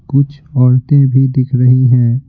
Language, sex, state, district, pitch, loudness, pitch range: Hindi, male, Bihar, Patna, 130 Hz, -11 LUFS, 125-140 Hz